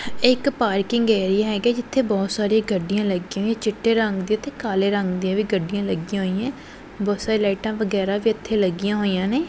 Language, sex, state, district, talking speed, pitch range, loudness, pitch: Punjabi, female, Punjab, Pathankot, 185 wpm, 195-225 Hz, -22 LUFS, 210 Hz